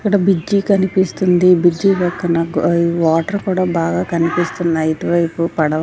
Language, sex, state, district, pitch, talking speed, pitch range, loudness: Telugu, female, Andhra Pradesh, Sri Satya Sai, 175 Hz, 115 wpm, 165-190 Hz, -16 LUFS